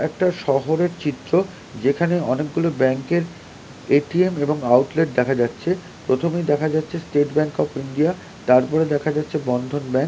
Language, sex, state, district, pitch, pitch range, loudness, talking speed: Bengali, male, West Bengal, North 24 Parganas, 150 Hz, 135-170 Hz, -21 LUFS, 160 wpm